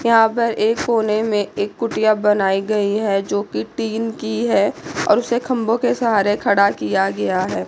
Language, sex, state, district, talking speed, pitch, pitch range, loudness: Hindi, female, Chandigarh, Chandigarh, 180 wpm, 215 Hz, 200-230 Hz, -18 LUFS